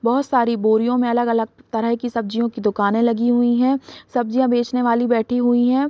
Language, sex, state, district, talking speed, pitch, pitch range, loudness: Hindi, female, Bihar, East Champaran, 195 wpm, 240 Hz, 230-245 Hz, -19 LUFS